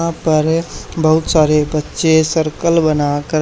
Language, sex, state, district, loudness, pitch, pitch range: Hindi, male, Haryana, Charkhi Dadri, -15 LUFS, 155 Hz, 155-165 Hz